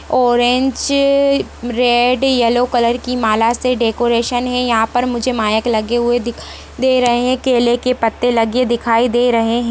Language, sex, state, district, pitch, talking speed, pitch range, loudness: Hindi, female, Chhattisgarh, Jashpur, 245 Hz, 165 wpm, 235-250 Hz, -15 LUFS